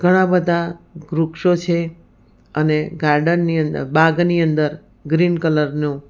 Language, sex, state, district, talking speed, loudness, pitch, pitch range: Gujarati, female, Gujarat, Valsad, 120 wpm, -18 LUFS, 165 Hz, 150-170 Hz